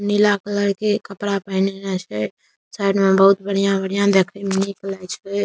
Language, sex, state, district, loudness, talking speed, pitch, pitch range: Maithili, male, Bihar, Saharsa, -19 LUFS, 165 wpm, 195 Hz, 195-200 Hz